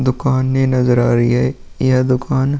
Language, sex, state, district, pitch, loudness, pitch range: Hindi, male, Uttar Pradesh, Muzaffarnagar, 130 Hz, -15 LUFS, 125-130 Hz